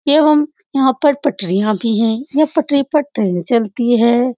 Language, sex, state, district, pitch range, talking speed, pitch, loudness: Hindi, female, Uttar Pradesh, Muzaffarnagar, 225-290 Hz, 165 wpm, 255 Hz, -15 LUFS